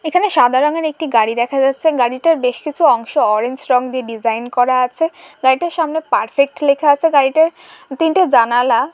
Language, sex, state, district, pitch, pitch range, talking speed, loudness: Bengali, female, West Bengal, Kolkata, 275 Hz, 245-320 Hz, 180 wpm, -15 LUFS